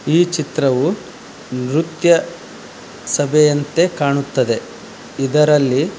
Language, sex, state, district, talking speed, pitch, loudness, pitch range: Kannada, male, Karnataka, Dharwad, 60 wpm, 150 Hz, -16 LUFS, 135-160 Hz